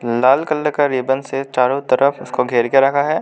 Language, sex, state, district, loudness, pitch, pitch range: Hindi, male, Arunachal Pradesh, Lower Dibang Valley, -16 LUFS, 135 Hz, 130-145 Hz